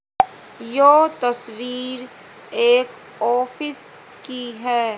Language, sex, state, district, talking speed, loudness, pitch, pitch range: Hindi, female, Haryana, Charkhi Dadri, 70 wpm, -20 LUFS, 250 Hz, 245-295 Hz